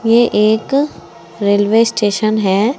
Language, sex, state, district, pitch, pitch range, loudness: Hindi, female, Uttar Pradesh, Saharanpur, 215 Hz, 210-230 Hz, -14 LUFS